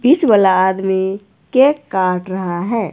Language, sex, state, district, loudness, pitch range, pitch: Hindi, female, Himachal Pradesh, Shimla, -15 LUFS, 185-235 Hz, 190 Hz